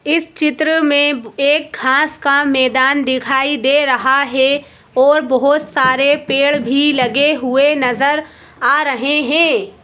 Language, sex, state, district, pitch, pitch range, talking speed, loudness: Hindi, female, Madhya Pradesh, Bhopal, 280 Hz, 265-295 Hz, 135 wpm, -14 LUFS